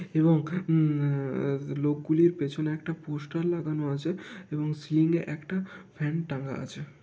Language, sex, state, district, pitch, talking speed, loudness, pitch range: Bengali, male, West Bengal, Kolkata, 155 Hz, 155 wpm, -29 LUFS, 145-165 Hz